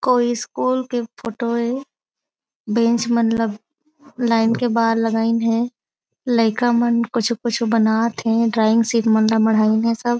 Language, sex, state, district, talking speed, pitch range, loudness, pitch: Chhattisgarhi, female, Chhattisgarh, Raigarh, 140 wpm, 225-240 Hz, -19 LUFS, 230 Hz